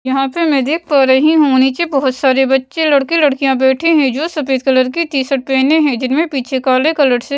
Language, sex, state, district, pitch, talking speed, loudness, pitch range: Hindi, female, Bihar, West Champaran, 270 Hz, 235 wpm, -13 LUFS, 265-305 Hz